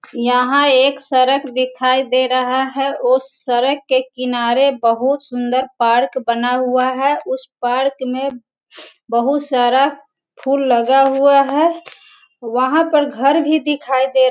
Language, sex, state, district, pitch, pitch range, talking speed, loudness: Hindi, female, Bihar, Sitamarhi, 260 Hz, 250-275 Hz, 140 wpm, -16 LUFS